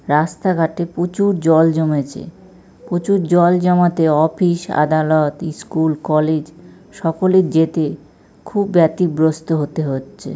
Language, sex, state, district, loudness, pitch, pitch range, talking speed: Bengali, male, West Bengal, North 24 Parganas, -17 LUFS, 165 Hz, 155-180 Hz, 100 wpm